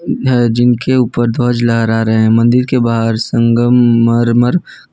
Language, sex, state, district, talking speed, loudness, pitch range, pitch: Hindi, male, Gujarat, Valsad, 120 wpm, -12 LUFS, 115-120 Hz, 120 Hz